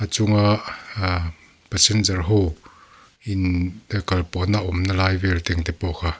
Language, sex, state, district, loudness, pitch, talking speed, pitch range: Mizo, male, Mizoram, Aizawl, -21 LUFS, 95 Hz, 135 wpm, 90-105 Hz